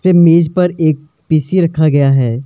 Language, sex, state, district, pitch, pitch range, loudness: Hindi, male, Himachal Pradesh, Shimla, 155 Hz, 150-175 Hz, -12 LUFS